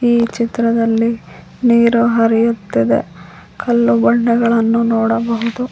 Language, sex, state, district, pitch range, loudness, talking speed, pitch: Kannada, female, Karnataka, Koppal, 225-235 Hz, -14 LUFS, 75 wpm, 230 Hz